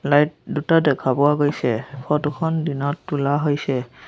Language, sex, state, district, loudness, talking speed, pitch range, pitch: Assamese, female, Assam, Sonitpur, -21 LUFS, 145 wpm, 140-150 Hz, 145 Hz